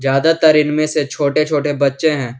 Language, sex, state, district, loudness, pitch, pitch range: Hindi, male, Jharkhand, Garhwa, -15 LUFS, 150 Hz, 140-155 Hz